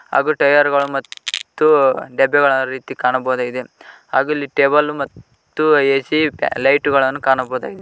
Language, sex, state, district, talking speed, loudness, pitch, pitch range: Kannada, male, Karnataka, Koppal, 115 wpm, -16 LUFS, 135 Hz, 130-145 Hz